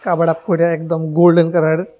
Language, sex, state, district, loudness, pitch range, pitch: Bengali, male, Tripura, West Tripura, -15 LUFS, 165-175 Hz, 170 Hz